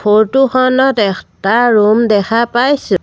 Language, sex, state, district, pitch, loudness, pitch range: Assamese, female, Assam, Sonitpur, 230 Hz, -12 LUFS, 210-255 Hz